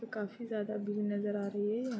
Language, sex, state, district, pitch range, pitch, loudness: Hindi, female, Chhattisgarh, Korba, 205-220 Hz, 210 Hz, -36 LUFS